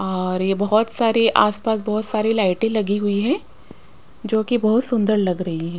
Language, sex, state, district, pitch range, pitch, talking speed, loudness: Hindi, female, Punjab, Pathankot, 195-225 Hz, 215 Hz, 175 wpm, -20 LUFS